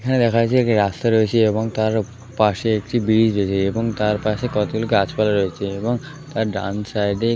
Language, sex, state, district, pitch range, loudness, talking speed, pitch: Bengali, male, West Bengal, Kolkata, 105-115 Hz, -20 LUFS, 205 wpm, 110 Hz